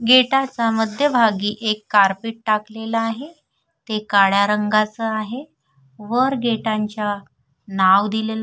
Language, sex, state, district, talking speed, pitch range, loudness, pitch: Marathi, female, Maharashtra, Sindhudurg, 105 wpm, 205-230 Hz, -19 LUFS, 215 Hz